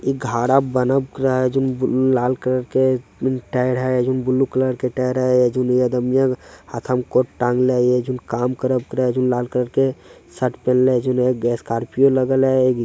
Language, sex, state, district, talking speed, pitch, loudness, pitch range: Hindi, male, Bihar, Jamui, 145 wpm, 130 Hz, -19 LUFS, 125-130 Hz